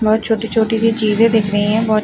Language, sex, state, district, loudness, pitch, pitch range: Hindi, female, Chhattisgarh, Bilaspur, -15 LUFS, 220 Hz, 215-225 Hz